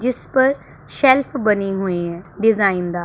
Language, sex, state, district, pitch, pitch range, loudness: Hindi, female, Punjab, Pathankot, 205 Hz, 180-260 Hz, -18 LUFS